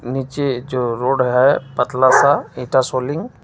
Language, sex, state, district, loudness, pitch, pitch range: Hindi, male, Jharkhand, Ranchi, -17 LUFS, 130 Hz, 125-135 Hz